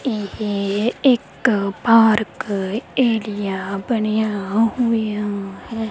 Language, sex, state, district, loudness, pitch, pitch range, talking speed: Punjabi, female, Punjab, Kapurthala, -20 LUFS, 215 Hz, 200-230 Hz, 70 wpm